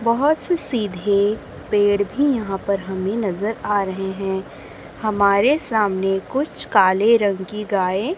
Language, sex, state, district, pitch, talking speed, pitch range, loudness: Hindi, female, Chhattisgarh, Raipur, 205 Hz, 140 wpm, 195-230 Hz, -20 LUFS